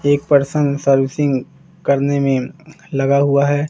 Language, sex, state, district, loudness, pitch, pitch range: Hindi, male, Madhya Pradesh, Umaria, -16 LUFS, 140 Hz, 140-145 Hz